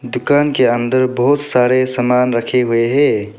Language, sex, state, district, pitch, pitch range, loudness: Hindi, male, Arunachal Pradesh, Papum Pare, 125 Hz, 120-130 Hz, -14 LUFS